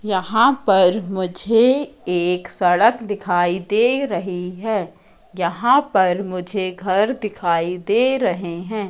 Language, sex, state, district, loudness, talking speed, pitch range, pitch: Hindi, female, Madhya Pradesh, Katni, -19 LUFS, 115 wpm, 180-225 Hz, 190 Hz